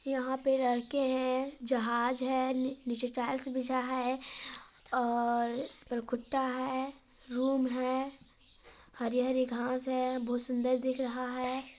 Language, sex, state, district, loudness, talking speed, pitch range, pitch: Hindi, female, Chhattisgarh, Balrampur, -33 LUFS, 120 wpm, 250-260 Hz, 255 Hz